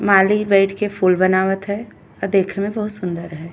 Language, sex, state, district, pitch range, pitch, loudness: Bhojpuri, female, Uttar Pradesh, Deoria, 185-205 Hz, 195 Hz, -18 LUFS